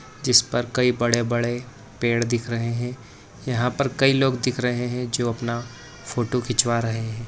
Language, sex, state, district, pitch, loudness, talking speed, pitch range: Hindi, male, Bihar, Samastipur, 120 Hz, -23 LUFS, 165 wpm, 115-125 Hz